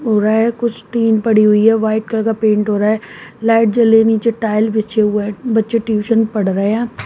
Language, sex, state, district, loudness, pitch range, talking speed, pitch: Hindi, female, Haryana, Jhajjar, -14 LUFS, 215-225 Hz, 245 wpm, 220 Hz